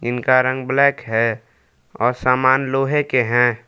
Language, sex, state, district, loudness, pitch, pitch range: Hindi, male, Jharkhand, Palamu, -17 LUFS, 125 Hz, 115-130 Hz